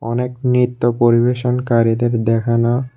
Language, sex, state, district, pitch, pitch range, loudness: Bengali, male, Tripura, West Tripura, 120 Hz, 115-125 Hz, -16 LUFS